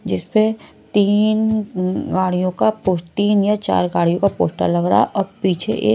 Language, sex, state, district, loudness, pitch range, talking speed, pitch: Hindi, female, Maharashtra, Washim, -18 LUFS, 180-215 Hz, 180 wpm, 195 Hz